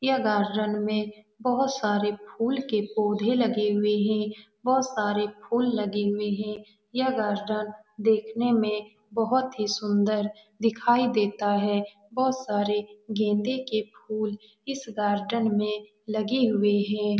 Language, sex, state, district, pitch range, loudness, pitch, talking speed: Hindi, female, Bihar, Saran, 210-225 Hz, -26 LUFS, 210 Hz, 135 wpm